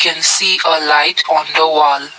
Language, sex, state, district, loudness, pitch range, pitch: English, male, Assam, Kamrup Metropolitan, -12 LUFS, 150-160 Hz, 155 Hz